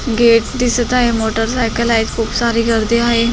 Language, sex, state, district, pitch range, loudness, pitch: Marathi, female, Maharashtra, Solapur, 230-235 Hz, -15 LUFS, 235 Hz